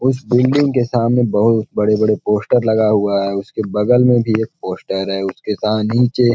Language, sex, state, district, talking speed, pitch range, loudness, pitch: Hindi, male, Bihar, Gaya, 180 wpm, 105-125 Hz, -16 LUFS, 110 Hz